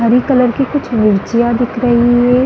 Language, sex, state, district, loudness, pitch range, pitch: Hindi, female, Chhattisgarh, Bastar, -12 LUFS, 235-250 Hz, 240 Hz